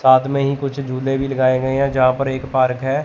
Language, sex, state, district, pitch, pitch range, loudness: Hindi, male, Chandigarh, Chandigarh, 135 Hz, 130-135 Hz, -18 LUFS